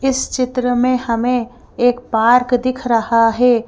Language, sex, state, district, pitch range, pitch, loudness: Hindi, female, Madhya Pradesh, Bhopal, 235-250 Hz, 245 Hz, -16 LUFS